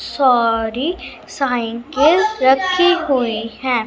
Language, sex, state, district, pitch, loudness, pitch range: Hindi, female, Punjab, Fazilka, 265 Hz, -16 LUFS, 235-315 Hz